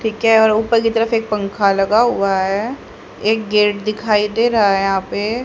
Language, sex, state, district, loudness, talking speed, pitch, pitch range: Hindi, female, Haryana, Jhajjar, -16 LUFS, 210 wpm, 215 Hz, 200-225 Hz